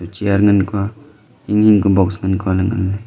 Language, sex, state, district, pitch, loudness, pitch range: Wancho, male, Arunachal Pradesh, Longding, 100 Hz, -16 LUFS, 95-105 Hz